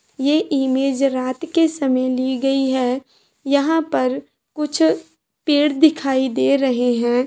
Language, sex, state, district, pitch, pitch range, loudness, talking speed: Hindi, female, Bihar, Bhagalpur, 270 Hz, 255-300 Hz, -19 LUFS, 130 wpm